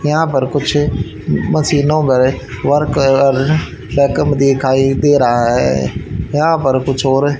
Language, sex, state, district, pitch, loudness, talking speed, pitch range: Hindi, male, Haryana, Charkhi Dadri, 140 Hz, -14 LUFS, 145 wpm, 135-145 Hz